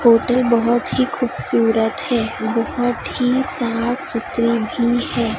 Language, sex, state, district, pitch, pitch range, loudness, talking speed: Hindi, female, Chhattisgarh, Raipur, 235 Hz, 230-245 Hz, -18 LUFS, 125 wpm